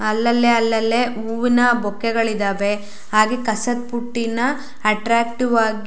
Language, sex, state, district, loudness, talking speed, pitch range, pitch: Kannada, female, Karnataka, Shimoga, -19 LUFS, 90 wpm, 215-240 Hz, 230 Hz